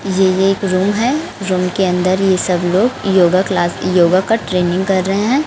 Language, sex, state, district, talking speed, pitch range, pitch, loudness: Hindi, female, Chhattisgarh, Raipur, 200 wpm, 180-195 Hz, 190 Hz, -14 LUFS